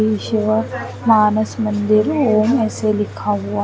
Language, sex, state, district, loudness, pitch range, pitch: Hindi, female, Chandigarh, Chandigarh, -17 LUFS, 210-220 Hz, 215 Hz